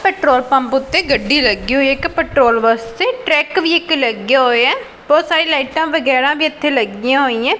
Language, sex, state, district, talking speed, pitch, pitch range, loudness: Punjabi, female, Punjab, Pathankot, 180 wpm, 280 Hz, 260-320 Hz, -14 LUFS